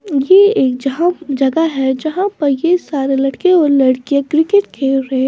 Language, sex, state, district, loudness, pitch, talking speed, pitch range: Hindi, female, Maharashtra, Washim, -14 LUFS, 285 Hz, 180 wpm, 270-350 Hz